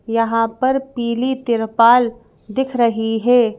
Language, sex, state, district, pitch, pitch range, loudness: Hindi, female, Madhya Pradesh, Bhopal, 235 Hz, 230-250 Hz, -17 LUFS